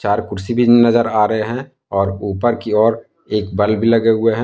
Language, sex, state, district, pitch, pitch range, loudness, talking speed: Hindi, male, Jharkhand, Deoghar, 110 Hz, 105-115 Hz, -16 LUFS, 215 wpm